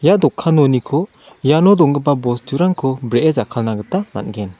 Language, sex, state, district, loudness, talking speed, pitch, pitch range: Garo, male, Meghalaya, West Garo Hills, -16 LUFS, 115 wpm, 145 Hz, 120-165 Hz